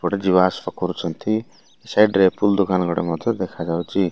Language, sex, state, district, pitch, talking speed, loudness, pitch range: Odia, male, Odisha, Malkangiri, 95 Hz, 160 wpm, -20 LUFS, 90-100 Hz